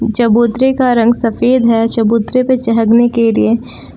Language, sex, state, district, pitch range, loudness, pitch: Hindi, female, Jharkhand, Palamu, 230-245 Hz, -12 LUFS, 235 Hz